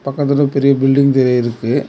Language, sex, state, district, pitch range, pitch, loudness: Tamil, male, Tamil Nadu, Kanyakumari, 125-140 Hz, 140 Hz, -14 LUFS